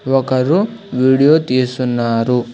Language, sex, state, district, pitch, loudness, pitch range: Telugu, male, Telangana, Hyderabad, 130 Hz, -15 LUFS, 125-140 Hz